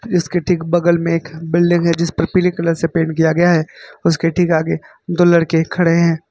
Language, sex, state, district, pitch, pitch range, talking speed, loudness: Hindi, male, Uttar Pradesh, Lucknow, 170 Hz, 165-175 Hz, 220 wpm, -16 LUFS